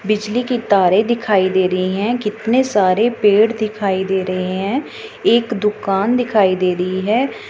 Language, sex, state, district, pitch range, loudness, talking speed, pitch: Hindi, female, Punjab, Pathankot, 190-235 Hz, -16 LUFS, 160 wpm, 210 Hz